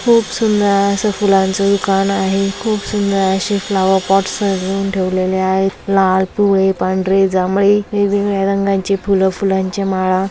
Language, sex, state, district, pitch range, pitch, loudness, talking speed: Marathi, female, Maharashtra, Aurangabad, 190-200 Hz, 195 Hz, -15 LUFS, 135 wpm